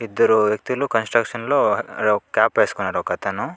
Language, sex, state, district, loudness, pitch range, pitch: Telugu, male, Andhra Pradesh, Chittoor, -20 LUFS, 110-120 Hz, 115 Hz